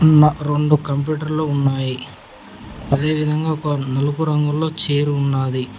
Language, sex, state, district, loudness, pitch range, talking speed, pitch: Telugu, male, Telangana, Mahabubabad, -19 LUFS, 140-155 Hz, 115 wpm, 145 Hz